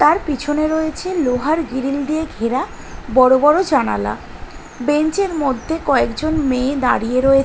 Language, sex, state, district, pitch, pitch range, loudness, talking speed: Bengali, female, West Bengal, North 24 Parganas, 280 Hz, 255-310 Hz, -17 LUFS, 130 wpm